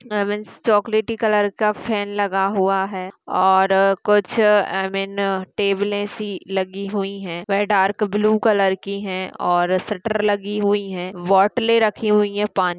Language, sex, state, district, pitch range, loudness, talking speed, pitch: Hindi, female, Uttar Pradesh, Hamirpur, 195-210 Hz, -20 LUFS, 160 wpm, 200 Hz